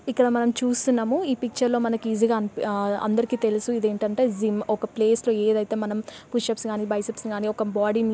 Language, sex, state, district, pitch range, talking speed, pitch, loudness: Telugu, female, Telangana, Nalgonda, 215-240 Hz, 200 wpm, 225 Hz, -24 LUFS